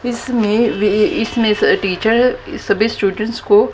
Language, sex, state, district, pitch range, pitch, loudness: Hindi, female, Haryana, Jhajjar, 210-240 Hz, 225 Hz, -15 LUFS